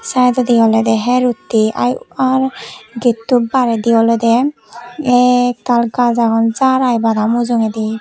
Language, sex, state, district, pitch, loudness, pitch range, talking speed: Chakma, female, Tripura, West Tripura, 240 Hz, -14 LUFS, 225-250 Hz, 105 wpm